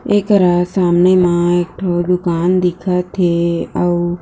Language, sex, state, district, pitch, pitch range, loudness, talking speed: Chhattisgarhi, female, Chhattisgarh, Jashpur, 180 Hz, 175-185 Hz, -14 LUFS, 130 wpm